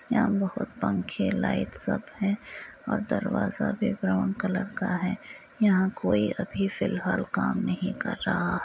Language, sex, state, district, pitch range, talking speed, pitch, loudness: Hindi, female, Uttar Pradesh, Muzaffarnagar, 185-210 Hz, 155 wpm, 200 Hz, -28 LUFS